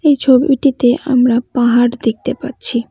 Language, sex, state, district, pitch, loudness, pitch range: Bengali, female, West Bengal, Cooch Behar, 250 Hz, -14 LUFS, 240-275 Hz